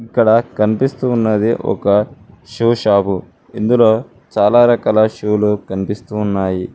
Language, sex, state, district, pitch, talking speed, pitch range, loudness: Telugu, male, Telangana, Mahabubabad, 110 Hz, 105 wpm, 100-120 Hz, -15 LUFS